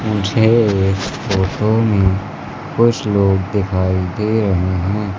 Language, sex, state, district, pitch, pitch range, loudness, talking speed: Hindi, male, Madhya Pradesh, Katni, 100 Hz, 95-110 Hz, -16 LUFS, 115 wpm